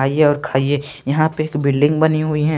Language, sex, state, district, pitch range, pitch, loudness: Hindi, male, Chandigarh, Chandigarh, 145-155 Hz, 150 Hz, -17 LUFS